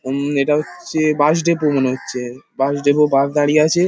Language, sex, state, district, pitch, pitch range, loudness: Bengali, male, West Bengal, Paschim Medinipur, 145 Hz, 135-155 Hz, -17 LUFS